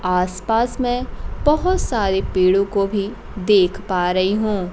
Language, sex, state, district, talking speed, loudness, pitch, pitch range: Hindi, female, Bihar, Kaimur, 150 wpm, -19 LUFS, 200 Hz, 185-225 Hz